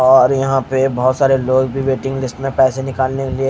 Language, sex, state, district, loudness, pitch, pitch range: Hindi, female, Odisha, Khordha, -16 LUFS, 135 Hz, 130-135 Hz